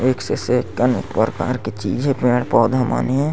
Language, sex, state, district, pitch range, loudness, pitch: Chhattisgarhi, male, Chhattisgarh, Sarguja, 115-130 Hz, -19 LUFS, 125 Hz